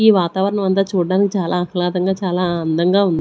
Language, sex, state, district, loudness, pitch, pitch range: Telugu, female, Andhra Pradesh, Sri Satya Sai, -17 LUFS, 185 Hz, 180-195 Hz